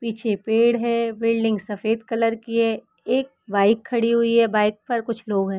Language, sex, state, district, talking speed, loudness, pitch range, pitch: Hindi, female, Uttar Pradesh, Etah, 205 wpm, -22 LUFS, 215-235 Hz, 230 Hz